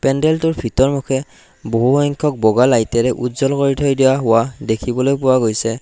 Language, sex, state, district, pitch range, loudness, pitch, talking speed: Assamese, male, Assam, Kamrup Metropolitan, 115-140 Hz, -16 LUFS, 130 Hz, 105 wpm